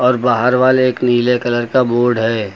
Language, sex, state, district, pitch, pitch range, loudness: Hindi, male, Uttar Pradesh, Lucknow, 125 Hz, 120-125 Hz, -14 LUFS